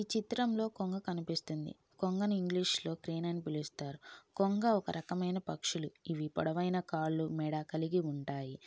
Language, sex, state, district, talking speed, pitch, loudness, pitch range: Telugu, female, Andhra Pradesh, Guntur, 145 wpm, 170 Hz, -36 LUFS, 155-190 Hz